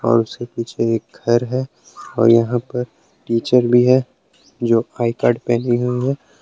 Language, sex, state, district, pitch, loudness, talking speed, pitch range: Hindi, male, Jharkhand, Palamu, 120 Hz, -18 LUFS, 170 wpm, 115-125 Hz